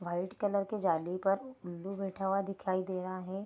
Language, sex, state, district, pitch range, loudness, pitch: Hindi, female, Bihar, Darbhanga, 185-195 Hz, -35 LUFS, 190 Hz